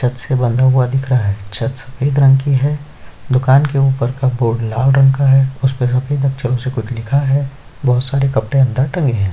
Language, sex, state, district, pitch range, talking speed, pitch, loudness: Hindi, male, Chhattisgarh, Sukma, 125-135 Hz, 225 wpm, 130 Hz, -15 LUFS